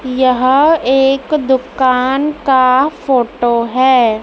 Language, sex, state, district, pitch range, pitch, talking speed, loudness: Hindi, female, Madhya Pradesh, Dhar, 255-270 Hz, 260 Hz, 85 wpm, -12 LUFS